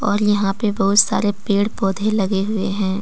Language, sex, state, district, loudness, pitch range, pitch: Hindi, female, Jharkhand, Deoghar, -18 LUFS, 195-210 Hz, 205 Hz